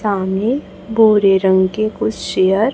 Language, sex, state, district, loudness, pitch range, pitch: Hindi, female, Chhattisgarh, Raipur, -15 LUFS, 190-215 Hz, 200 Hz